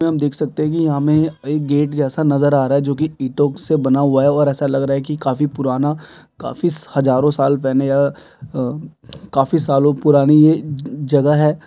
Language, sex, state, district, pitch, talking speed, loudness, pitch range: Maithili, male, Bihar, Samastipur, 145 Hz, 210 wpm, -16 LUFS, 135-150 Hz